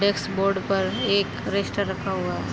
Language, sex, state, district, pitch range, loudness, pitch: Hindi, female, Jharkhand, Sahebganj, 165-200 Hz, -24 LUFS, 195 Hz